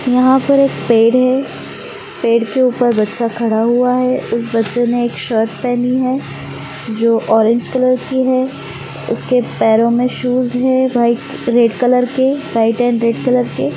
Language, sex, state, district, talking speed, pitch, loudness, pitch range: Hindi, female, Maharashtra, Aurangabad, 165 wpm, 245 Hz, -14 LUFS, 230-255 Hz